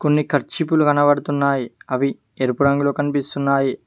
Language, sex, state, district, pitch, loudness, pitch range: Telugu, male, Telangana, Mahabubabad, 140 Hz, -19 LUFS, 140-145 Hz